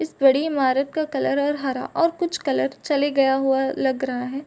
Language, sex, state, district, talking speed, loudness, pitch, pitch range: Hindi, female, Bihar, Supaul, 215 wpm, -22 LUFS, 275 Hz, 265-295 Hz